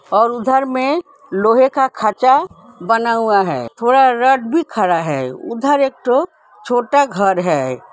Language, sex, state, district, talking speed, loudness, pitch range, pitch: Hindi, female, Uttar Pradesh, Hamirpur, 150 wpm, -15 LUFS, 200-265 Hz, 245 Hz